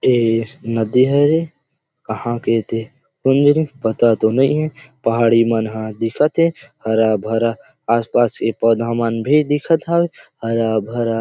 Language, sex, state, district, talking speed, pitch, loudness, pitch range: Chhattisgarhi, male, Chhattisgarh, Rajnandgaon, 145 wpm, 115 Hz, -17 LUFS, 115-145 Hz